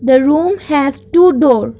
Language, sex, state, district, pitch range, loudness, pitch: English, female, Assam, Kamrup Metropolitan, 260-345 Hz, -12 LUFS, 285 Hz